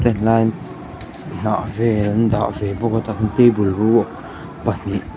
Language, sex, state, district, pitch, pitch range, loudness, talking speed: Mizo, male, Mizoram, Aizawl, 110 Hz, 105-115 Hz, -18 LUFS, 125 wpm